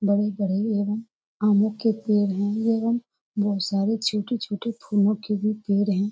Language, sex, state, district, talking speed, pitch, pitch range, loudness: Hindi, female, Bihar, Saran, 155 wpm, 210 Hz, 205-220 Hz, -24 LUFS